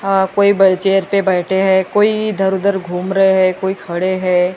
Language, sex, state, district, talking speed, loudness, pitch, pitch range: Hindi, female, Maharashtra, Gondia, 195 wpm, -14 LUFS, 190 Hz, 185-195 Hz